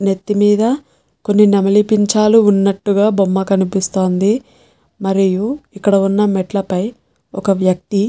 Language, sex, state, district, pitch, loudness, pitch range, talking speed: Telugu, female, Telangana, Nalgonda, 200 Hz, -15 LUFS, 195-210 Hz, 105 wpm